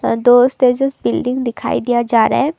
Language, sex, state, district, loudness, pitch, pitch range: Hindi, female, Assam, Kamrup Metropolitan, -15 LUFS, 250 Hz, 240-265 Hz